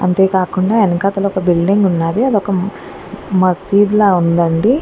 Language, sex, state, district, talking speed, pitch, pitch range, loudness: Telugu, female, Andhra Pradesh, Guntur, 110 wpm, 190 Hz, 180-205 Hz, -14 LUFS